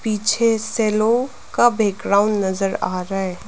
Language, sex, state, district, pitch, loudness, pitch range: Hindi, female, Arunachal Pradesh, Lower Dibang Valley, 215 Hz, -19 LUFS, 195-225 Hz